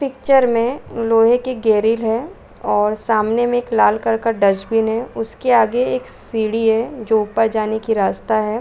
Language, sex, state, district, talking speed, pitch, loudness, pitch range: Hindi, female, Jharkhand, Sahebganj, 180 wpm, 225 Hz, -17 LUFS, 220-235 Hz